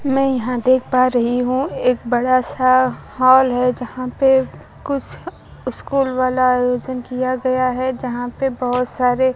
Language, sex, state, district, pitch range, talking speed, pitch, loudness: Hindi, male, Bihar, Kaimur, 250-260 Hz, 155 wpm, 255 Hz, -18 LUFS